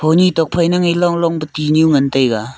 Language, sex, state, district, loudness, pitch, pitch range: Wancho, male, Arunachal Pradesh, Longding, -14 LUFS, 160 Hz, 145-170 Hz